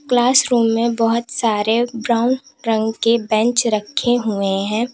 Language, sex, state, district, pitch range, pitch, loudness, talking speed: Hindi, female, Uttar Pradesh, Lalitpur, 220-245 Hz, 230 Hz, -17 LUFS, 135 wpm